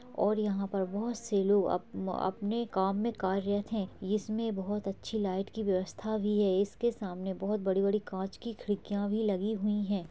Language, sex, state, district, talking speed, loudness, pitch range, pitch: Hindi, female, Chhattisgarh, Kabirdham, 185 wpm, -32 LUFS, 190-215 Hz, 205 Hz